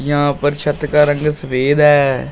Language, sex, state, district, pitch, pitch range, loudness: Hindi, male, Uttar Pradesh, Shamli, 145 Hz, 140-150 Hz, -14 LUFS